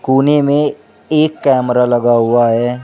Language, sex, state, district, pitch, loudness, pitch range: Hindi, male, Uttar Pradesh, Shamli, 125 Hz, -13 LUFS, 120-145 Hz